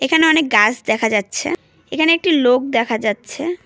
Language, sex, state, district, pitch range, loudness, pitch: Bengali, female, West Bengal, Cooch Behar, 225-320 Hz, -16 LUFS, 265 Hz